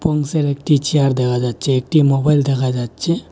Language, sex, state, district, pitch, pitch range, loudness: Bengali, male, Assam, Hailakandi, 140 Hz, 130-150 Hz, -17 LUFS